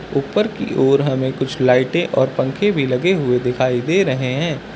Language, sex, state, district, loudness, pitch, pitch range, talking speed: Hindi, male, Uttar Pradesh, Lucknow, -17 LUFS, 135 Hz, 130-170 Hz, 190 wpm